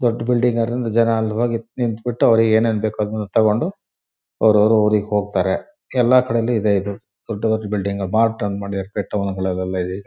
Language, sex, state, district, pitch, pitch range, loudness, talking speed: Kannada, male, Karnataka, Shimoga, 110 Hz, 100-115 Hz, -19 LUFS, 130 wpm